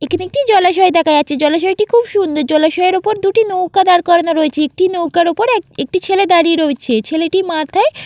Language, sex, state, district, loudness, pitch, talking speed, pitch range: Bengali, female, West Bengal, Jalpaiguri, -13 LUFS, 350 Hz, 200 wpm, 310-380 Hz